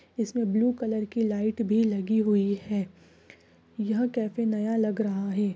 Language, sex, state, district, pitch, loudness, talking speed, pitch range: Hindi, female, Bihar, East Champaran, 215 Hz, -27 LUFS, 175 wpm, 200-225 Hz